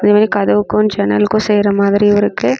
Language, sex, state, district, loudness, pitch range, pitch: Tamil, female, Tamil Nadu, Namakkal, -13 LUFS, 125-210 Hz, 205 Hz